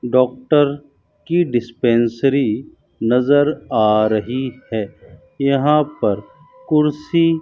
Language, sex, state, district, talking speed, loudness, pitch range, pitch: Hindi, male, Rajasthan, Bikaner, 90 wpm, -18 LUFS, 120-150 Hz, 135 Hz